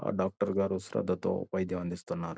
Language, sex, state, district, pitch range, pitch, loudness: Telugu, male, Andhra Pradesh, Guntur, 90-95 Hz, 95 Hz, -33 LUFS